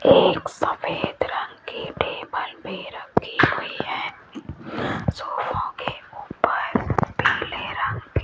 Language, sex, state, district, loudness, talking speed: Hindi, female, Rajasthan, Jaipur, -24 LUFS, 115 wpm